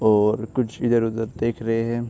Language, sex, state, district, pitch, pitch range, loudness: Hindi, male, Maharashtra, Chandrapur, 115 Hz, 110-120 Hz, -23 LUFS